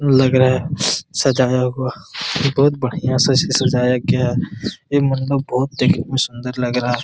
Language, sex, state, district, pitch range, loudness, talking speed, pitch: Hindi, male, Jharkhand, Jamtara, 125-135 Hz, -18 LUFS, 160 wpm, 130 Hz